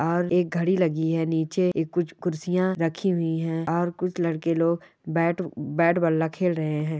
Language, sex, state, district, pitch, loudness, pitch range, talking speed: Hindi, female, Rajasthan, Churu, 170 Hz, -25 LUFS, 160-175 Hz, 170 wpm